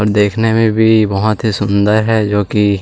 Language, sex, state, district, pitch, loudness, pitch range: Hindi, male, Chhattisgarh, Sukma, 105 Hz, -13 LUFS, 105-110 Hz